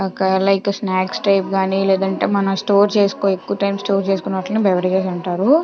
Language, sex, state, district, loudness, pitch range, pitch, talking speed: Telugu, female, Andhra Pradesh, Chittoor, -18 LUFS, 190-200 Hz, 195 Hz, 180 wpm